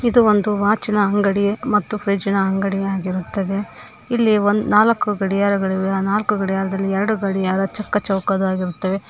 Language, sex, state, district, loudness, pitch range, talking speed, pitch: Kannada, female, Karnataka, Koppal, -19 LUFS, 195-210 Hz, 125 wpm, 200 Hz